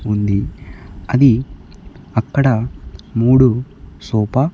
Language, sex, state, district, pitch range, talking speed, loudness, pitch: Telugu, male, Andhra Pradesh, Sri Satya Sai, 95-130 Hz, 80 wpm, -16 LUFS, 110 Hz